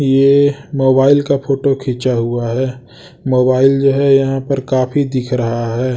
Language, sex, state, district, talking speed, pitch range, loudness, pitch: Hindi, male, Odisha, Sambalpur, 160 wpm, 125-140 Hz, -14 LUFS, 135 Hz